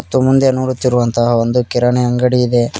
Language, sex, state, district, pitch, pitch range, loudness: Kannada, male, Karnataka, Koppal, 125 Hz, 120-130 Hz, -14 LUFS